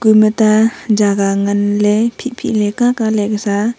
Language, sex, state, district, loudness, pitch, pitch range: Wancho, female, Arunachal Pradesh, Longding, -14 LUFS, 215 Hz, 205-225 Hz